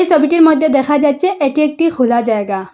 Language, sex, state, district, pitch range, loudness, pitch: Bengali, female, Assam, Hailakandi, 245-320 Hz, -13 LUFS, 295 Hz